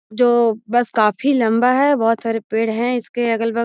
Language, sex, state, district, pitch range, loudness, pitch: Magahi, female, Bihar, Gaya, 225-245 Hz, -17 LUFS, 235 Hz